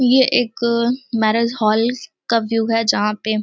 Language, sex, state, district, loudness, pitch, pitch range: Hindi, female, Uttar Pradesh, Deoria, -18 LUFS, 230 Hz, 220-245 Hz